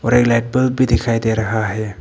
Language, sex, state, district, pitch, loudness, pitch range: Hindi, male, Arunachal Pradesh, Papum Pare, 115 Hz, -17 LUFS, 110-120 Hz